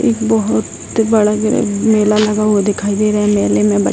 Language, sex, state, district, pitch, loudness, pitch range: Hindi, female, Bihar, Jahanabad, 210 Hz, -14 LUFS, 205-220 Hz